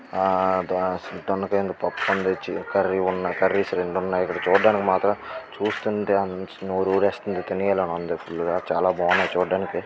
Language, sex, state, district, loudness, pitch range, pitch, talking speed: Telugu, male, Andhra Pradesh, Guntur, -23 LUFS, 95-100 Hz, 95 Hz, 105 wpm